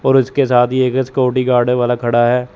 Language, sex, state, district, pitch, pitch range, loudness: Hindi, male, Chandigarh, Chandigarh, 125 Hz, 120-130 Hz, -14 LUFS